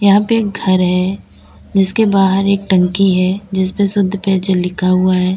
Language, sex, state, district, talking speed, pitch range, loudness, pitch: Hindi, female, Uttar Pradesh, Lalitpur, 180 wpm, 185-200 Hz, -13 LUFS, 190 Hz